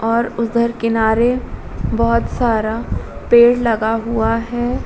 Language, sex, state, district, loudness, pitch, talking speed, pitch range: Hindi, female, Uttar Pradesh, Muzaffarnagar, -17 LUFS, 230 Hz, 110 wpm, 225-235 Hz